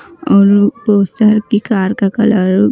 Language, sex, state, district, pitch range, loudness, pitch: Hindi, female, Maharashtra, Mumbai Suburban, 200-220 Hz, -12 LUFS, 210 Hz